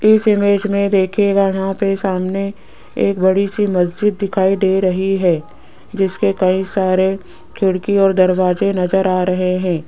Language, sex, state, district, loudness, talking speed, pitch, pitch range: Hindi, female, Rajasthan, Jaipur, -16 LUFS, 150 wpm, 195 Hz, 185-200 Hz